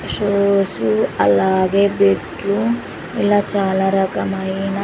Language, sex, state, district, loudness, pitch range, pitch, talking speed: Telugu, female, Andhra Pradesh, Sri Satya Sai, -17 LUFS, 190-200 Hz, 195 Hz, 75 wpm